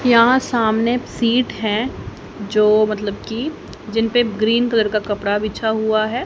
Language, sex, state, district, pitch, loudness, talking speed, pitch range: Hindi, female, Haryana, Jhajjar, 220 Hz, -18 LUFS, 155 wpm, 215-240 Hz